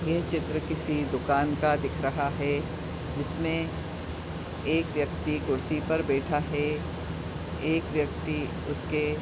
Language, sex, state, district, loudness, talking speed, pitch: Hindi, female, Uttar Pradesh, Deoria, -29 LUFS, 125 wpm, 145 Hz